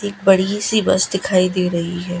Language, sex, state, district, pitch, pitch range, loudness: Hindi, female, Gujarat, Gandhinagar, 185 Hz, 180-200 Hz, -17 LUFS